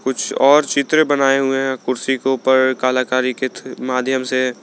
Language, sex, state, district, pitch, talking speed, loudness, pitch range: Hindi, male, Jharkhand, Garhwa, 130 Hz, 170 wpm, -17 LUFS, 130-135 Hz